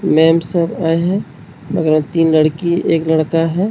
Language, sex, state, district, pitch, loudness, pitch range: Hindi, male, Jharkhand, Deoghar, 165 Hz, -15 LUFS, 160-170 Hz